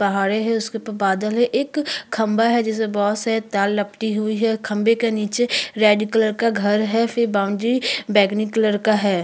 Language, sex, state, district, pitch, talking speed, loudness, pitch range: Hindi, female, Uttarakhand, Tehri Garhwal, 215 Hz, 200 wpm, -20 LUFS, 205-230 Hz